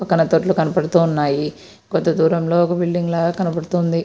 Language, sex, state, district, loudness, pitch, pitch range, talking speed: Telugu, female, Andhra Pradesh, Srikakulam, -18 LUFS, 170 Hz, 165-175 Hz, 135 wpm